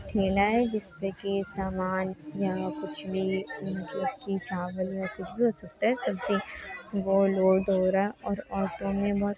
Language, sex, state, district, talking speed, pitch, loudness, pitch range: Hindi, female, Bihar, Muzaffarpur, 175 wpm, 195 Hz, -29 LUFS, 190-200 Hz